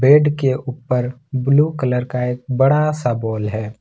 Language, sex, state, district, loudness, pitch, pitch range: Hindi, male, Jharkhand, Ranchi, -18 LUFS, 130 Hz, 125-145 Hz